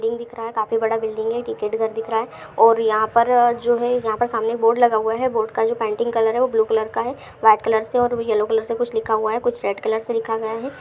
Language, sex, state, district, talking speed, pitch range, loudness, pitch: Hindi, female, Bihar, Lakhisarai, 290 wpm, 220-235 Hz, -20 LUFS, 225 Hz